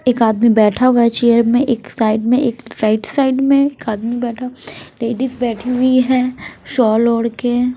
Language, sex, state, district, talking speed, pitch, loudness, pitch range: Hindi, female, Punjab, Kapurthala, 185 wpm, 240 Hz, -15 LUFS, 230-255 Hz